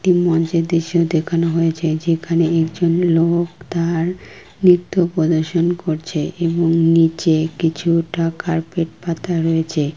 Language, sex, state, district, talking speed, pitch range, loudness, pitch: Bengali, female, West Bengal, Kolkata, 110 wpm, 165-170 Hz, -18 LUFS, 165 Hz